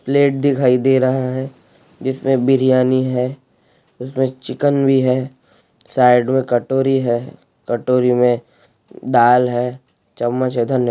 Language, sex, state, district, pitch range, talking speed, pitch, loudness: Hindi, male, Chhattisgarh, Raigarh, 125-130 Hz, 125 wpm, 130 Hz, -17 LUFS